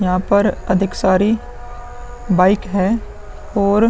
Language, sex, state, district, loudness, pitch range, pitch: Hindi, male, Uttar Pradesh, Muzaffarnagar, -17 LUFS, 180-200 Hz, 190 Hz